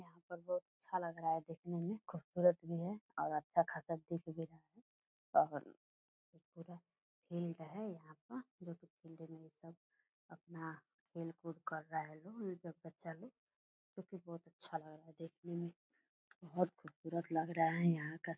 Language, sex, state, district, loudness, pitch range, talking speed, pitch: Hindi, female, Bihar, Purnia, -42 LUFS, 160-175 Hz, 190 wpm, 170 Hz